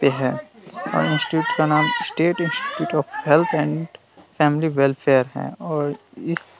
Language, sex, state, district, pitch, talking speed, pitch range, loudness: Hindi, male, Bihar, Vaishali, 150 Hz, 155 wpm, 140-165 Hz, -21 LUFS